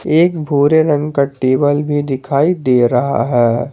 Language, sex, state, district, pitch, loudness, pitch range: Hindi, male, Jharkhand, Garhwa, 140 Hz, -14 LUFS, 130-150 Hz